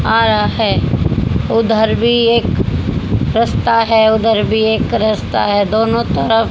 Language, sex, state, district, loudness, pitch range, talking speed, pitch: Hindi, female, Haryana, Jhajjar, -14 LUFS, 220-225 Hz, 140 wpm, 225 Hz